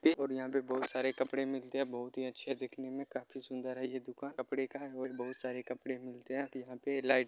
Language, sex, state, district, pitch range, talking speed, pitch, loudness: Maithili, male, Bihar, Darbhanga, 130-135 Hz, 280 wpm, 130 Hz, -38 LUFS